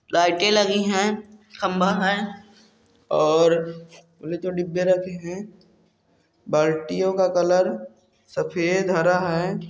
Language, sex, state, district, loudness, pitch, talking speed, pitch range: Hindi, male, Jharkhand, Jamtara, -22 LUFS, 185 Hz, 105 wpm, 175-200 Hz